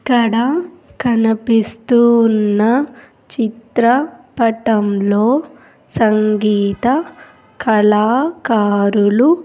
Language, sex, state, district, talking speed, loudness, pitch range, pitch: Telugu, female, Andhra Pradesh, Sri Satya Sai, 40 wpm, -15 LUFS, 215-260 Hz, 230 Hz